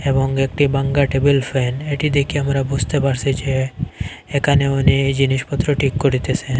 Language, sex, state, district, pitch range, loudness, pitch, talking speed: Bengali, male, Assam, Hailakandi, 135-140 Hz, -18 LUFS, 135 Hz, 155 wpm